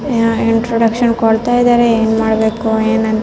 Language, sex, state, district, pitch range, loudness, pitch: Kannada, female, Karnataka, Bellary, 220-235 Hz, -13 LUFS, 225 Hz